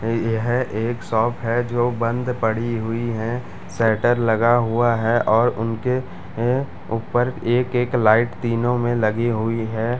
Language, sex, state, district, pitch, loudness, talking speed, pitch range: Hindi, male, Bihar, Madhepura, 115 Hz, -21 LUFS, 155 wpm, 115-120 Hz